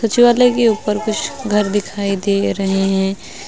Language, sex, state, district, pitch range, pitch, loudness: Hindi, female, Uttar Pradesh, Lucknow, 195-230 Hz, 210 Hz, -16 LUFS